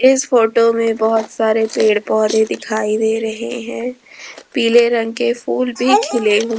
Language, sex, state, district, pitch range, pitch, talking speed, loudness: Hindi, female, Rajasthan, Jaipur, 220-240 Hz, 230 Hz, 165 wpm, -16 LUFS